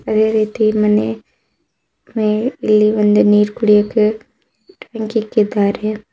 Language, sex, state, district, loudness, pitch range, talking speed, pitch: Kannada, female, Karnataka, Bidar, -15 LUFS, 210-220 Hz, 100 wpm, 215 Hz